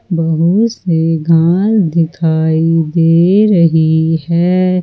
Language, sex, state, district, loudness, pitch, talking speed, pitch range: Hindi, female, Jharkhand, Ranchi, -11 LUFS, 165 Hz, 85 wpm, 160-180 Hz